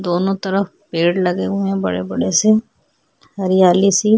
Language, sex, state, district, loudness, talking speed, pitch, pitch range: Hindi, female, Maharashtra, Chandrapur, -17 LUFS, 170 wpm, 185 Hz, 165-195 Hz